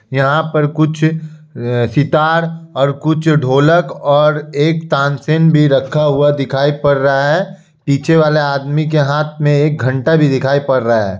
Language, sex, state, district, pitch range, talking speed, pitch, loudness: Hindi, male, Bihar, Kishanganj, 140-155 Hz, 165 wpm, 150 Hz, -13 LUFS